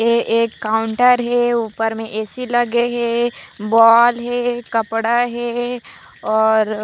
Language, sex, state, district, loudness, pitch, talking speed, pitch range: Chhattisgarhi, female, Chhattisgarh, Raigarh, -17 LUFS, 235 Hz, 130 wpm, 225-240 Hz